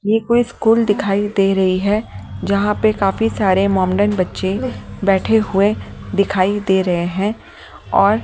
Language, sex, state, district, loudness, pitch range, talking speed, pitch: Hindi, female, Delhi, New Delhi, -17 LUFS, 190-215 Hz, 155 wpm, 200 Hz